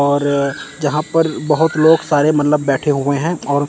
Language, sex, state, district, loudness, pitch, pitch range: Hindi, male, Chandigarh, Chandigarh, -15 LUFS, 150 Hz, 140-155 Hz